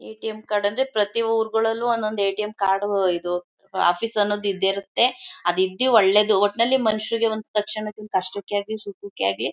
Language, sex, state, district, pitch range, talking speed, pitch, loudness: Kannada, female, Karnataka, Mysore, 195-220 Hz, 150 wpm, 210 Hz, -22 LUFS